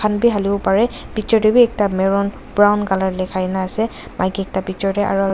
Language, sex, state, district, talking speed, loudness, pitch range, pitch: Nagamese, female, Nagaland, Dimapur, 225 wpm, -18 LUFS, 190-210 Hz, 200 Hz